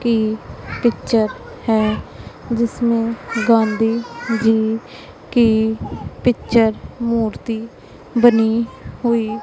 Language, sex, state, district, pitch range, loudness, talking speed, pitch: Hindi, female, Punjab, Pathankot, 220-235 Hz, -18 LUFS, 70 wpm, 230 Hz